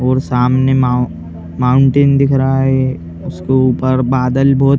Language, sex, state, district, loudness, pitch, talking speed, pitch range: Hindi, male, Uttar Pradesh, Etah, -13 LUFS, 130 Hz, 150 wpm, 125-135 Hz